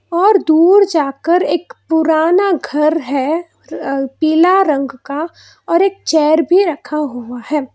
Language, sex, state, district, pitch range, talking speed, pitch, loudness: Hindi, female, Karnataka, Bangalore, 285-350 Hz, 130 wpm, 315 Hz, -14 LUFS